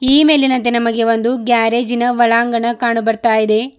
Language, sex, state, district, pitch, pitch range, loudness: Kannada, female, Karnataka, Bidar, 235 Hz, 230-245 Hz, -14 LUFS